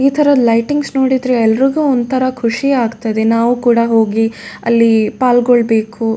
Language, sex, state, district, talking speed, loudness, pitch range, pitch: Kannada, female, Karnataka, Dakshina Kannada, 135 wpm, -13 LUFS, 225-260 Hz, 235 Hz